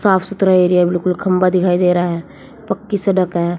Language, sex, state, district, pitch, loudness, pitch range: Hindi, female, Haryana, Jhajjar, 180 Hz, -16 LUFS, 175-190 Hz